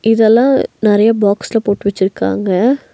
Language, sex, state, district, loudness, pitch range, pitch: Tamil, female, Tamil Nadu, Nilgiris, -13 LUFS, 200-230 Hz, 215 Hz